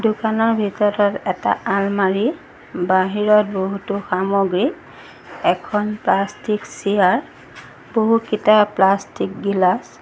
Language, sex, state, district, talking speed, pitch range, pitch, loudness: Assamese, female, Assam, Sonitpur, 80 wpm, 195-215 Hz, 205 Hz, -18 LUFS